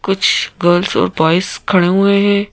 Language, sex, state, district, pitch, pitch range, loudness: Hindi, female, Madhya Pradesh, Bhopal, 190 Hz, 175-200 Hz, -13 LUFS